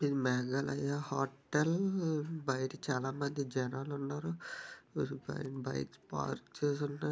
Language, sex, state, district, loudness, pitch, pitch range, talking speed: Telugu, male, Andhra Pradesh, Visakhapatnam, -37 LUFS, 140 Hz, 135-150 Hz, 100 wpm